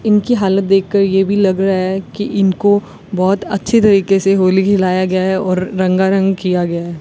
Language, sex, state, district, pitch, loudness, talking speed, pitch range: Hindi, female, Rajasthan, Bikaner, 195 Hz, -14 LUFS, 195 wpm, 185-200 Hz